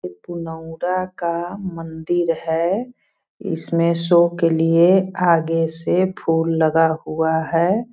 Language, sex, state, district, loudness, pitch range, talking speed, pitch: Hindi, female, Bihar, Sitamarhi, -19 LUFS, 165-180 Hz, 100 wpm, 170 Hz